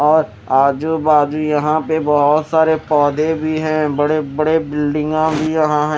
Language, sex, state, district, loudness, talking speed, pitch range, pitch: Hindi, male, Chandigarh, Chandigarh, -16 LUFS, 160 wpm, 150-155 Hz, 155 Hz